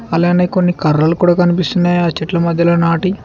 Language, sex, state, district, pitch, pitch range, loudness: Telugu, male, Telangana, Mahabubabad, 175 Hz, 170-180 Hz, -13 LUFS